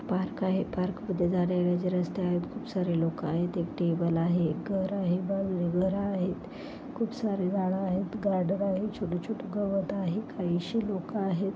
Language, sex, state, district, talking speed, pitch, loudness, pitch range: Marathi, female, Maharashtra, Pune, 155 wpm, 190 Hz, -30 LUFS, 175-200 Hz